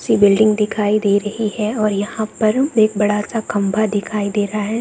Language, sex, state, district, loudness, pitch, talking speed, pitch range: Hindi, female, Bihar, Saran, -17 LUFS, 210 Hz, 210 wpm, 205-215 Hz